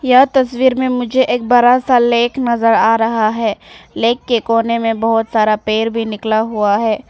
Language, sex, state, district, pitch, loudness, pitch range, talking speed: Hindi, female, Arunachal Pradesh, Papum Pare, 230 Hz, -14 LUFS, 225-245 Hz, 195 wpm